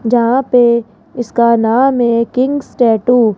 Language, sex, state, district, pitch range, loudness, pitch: Hindi, female, Rajasthan, Jaipur, 230-250 Hz, -12 LUFS, 240 Hz